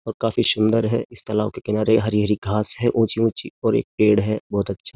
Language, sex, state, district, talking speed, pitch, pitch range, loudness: Hindi, male, Uttar Pradesh, Jyotiba Phule Nagar, 215 wpm, 110 Hz, 105-115 Hz, -19 LUFS